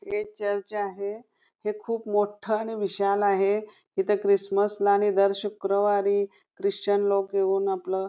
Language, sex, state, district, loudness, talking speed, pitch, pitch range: Marathi, female, Karnataka, Belgaum, -26 LUFS, 140 wpm, 200 Hz, 200-205 Hz